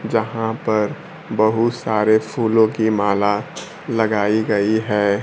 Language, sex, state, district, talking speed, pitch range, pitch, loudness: Hindi, male, Bihar, Kaimur, 115 wpm, 105-115 Hz, 110 Hz, -19 LUFS